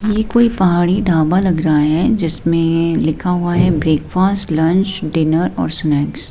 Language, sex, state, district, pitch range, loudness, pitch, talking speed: Hindi, female, Himachal Pradesh, Shimla, 160-190 Hz, -15 LUFS, 175 Hz, 160 wpm